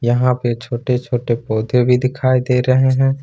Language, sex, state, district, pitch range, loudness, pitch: Hindi, male, Jharkhand, Ranchi, 120-130 Hz, -16 LUFS, 125 Hz